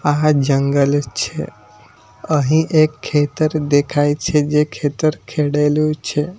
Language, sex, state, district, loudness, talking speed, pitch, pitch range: Gujarati, male, Gujarat, Valsad, -17 LUFS, 115 wpm, 150 Hz, 140-155 Hz